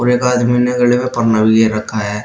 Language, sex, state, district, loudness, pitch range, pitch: Hindi, male, Uttar Pradesh, Shamli, -14 LUFS, 110-125 Hz, 120 Hz